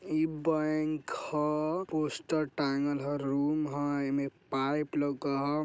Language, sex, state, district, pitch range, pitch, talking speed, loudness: Bajjika, male, Bihar, Vaishali, 140-155 Hz, 150 Hz, 140 wpm, -32 LUFS